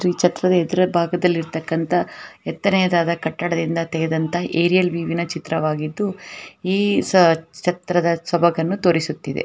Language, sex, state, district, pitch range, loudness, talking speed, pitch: Kannada, female, Karnataka, Raichur, 165-180 Hz, -20 LUFS, 85 wpm, 170 Hz